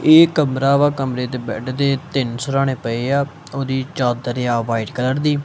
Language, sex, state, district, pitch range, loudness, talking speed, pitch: Punjabi, male, Punjab, Kapurthala, 125-140 Hz, -19 LUFS, 185 wpm, 135 Hz